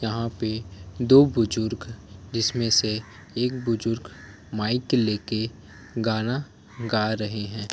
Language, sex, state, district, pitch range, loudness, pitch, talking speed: Hindi, male, Jharkhand, Jamtara, 105-115 Hz, -25 LUFS, 110 Hz, 110 wpm